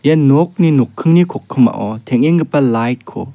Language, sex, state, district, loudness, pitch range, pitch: Garo, male, Meghalaya, South Garo Hills, -13 LUFS, 120-160 Hz, 140 Hz